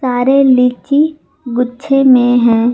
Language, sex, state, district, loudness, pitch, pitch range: Hindi, female, Jharkhand, Garhwa, -11 LUFS, 250 Hz, 245-275 Hz